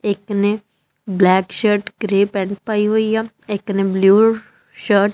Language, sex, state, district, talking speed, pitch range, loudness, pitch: Punjabi, female, Punjab, Kapurthala, 150 wpm, 195-215 Hz, -17 LUFS, 205 Hz